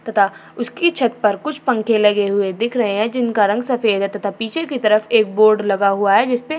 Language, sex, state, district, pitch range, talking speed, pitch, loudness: Hindi, female, Uttar Pradesh, Jyotiba Phule Nagar, 205-245 Hz, 235 wpm, 220 Hz, -17 LUFS